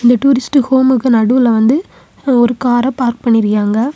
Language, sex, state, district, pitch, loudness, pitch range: Tamil, female, Tamil Nadu, Kanyakumari, 250 Hz, -12 LUFS, 235-260 Hz